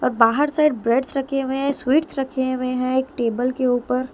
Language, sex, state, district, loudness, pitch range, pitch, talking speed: Hindi, female, Delhi, New Delhi, -21 LUFS, 250-275 Hz, 260 Hz, 230 wpm